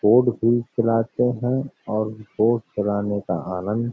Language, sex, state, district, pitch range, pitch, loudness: Hindi, male, Uttar Pradesh, Hamirpur, 105-120 Hz, 115 Hz, -22 LUFS